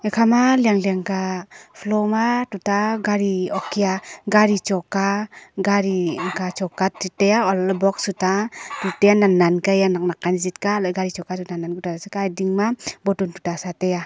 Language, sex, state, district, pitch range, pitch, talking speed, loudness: Wancho, female, Arunachal Pradesh, Longding, 185-210 Hz, 195 Hz, 220 wpm, -20 LUFS